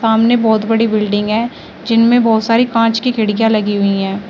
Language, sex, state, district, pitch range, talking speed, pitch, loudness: Hindi, female, Uttar Pradesh, Shamli, 210-230 Hz, 195 wpm, 225 Hz, -13 LUFS